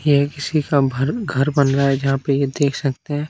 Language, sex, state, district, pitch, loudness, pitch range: Hindi, male, Bihar, Kaimur, 140 Hz, -19 LUFS, 140-145 Hz